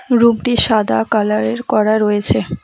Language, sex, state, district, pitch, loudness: Bengali, female, West Bengal, Alipurduar, 215 Hz, -14 LUFS